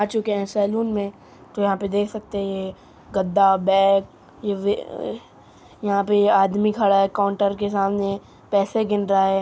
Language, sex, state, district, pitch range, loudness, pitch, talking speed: Hindi, male, Uttar Pradesh, Muzaffarnagar, 195-205 Hz, -21 LUFS, 200 Hz, 180 wpm